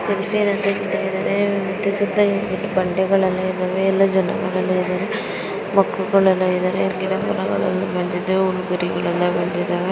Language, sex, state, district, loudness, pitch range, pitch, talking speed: Kannada, female, Karnataka, Mysore, -20 LUFS, 185-200 Hz, 190 Hz, 80 wpm